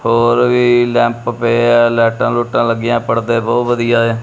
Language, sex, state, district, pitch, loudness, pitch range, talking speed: Punjabi, male, Punjab, Kapurthala, 120 Hz, -13 LUFS, 115-120 Hz, 170 wpm